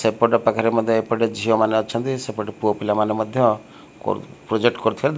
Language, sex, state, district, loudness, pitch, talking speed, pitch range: Odia, male, Odisha, Malkangiri, -21 LUFS, 110 Hz, 150 wpm, 110-115 Hz